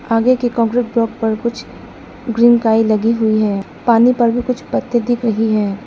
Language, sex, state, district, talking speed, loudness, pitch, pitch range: Hindi, female, Arunachal Pradesh, Lower Dibang Valley, 195 wpm, -15 LUFS, 230 Hz, 220-240 Hz